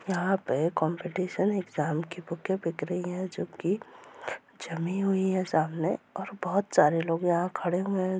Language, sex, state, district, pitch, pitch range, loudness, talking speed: Hindi, female, Bihar, Purnia, 180 Hz, 170-190 Hz, -29 LUFS, 170 wpm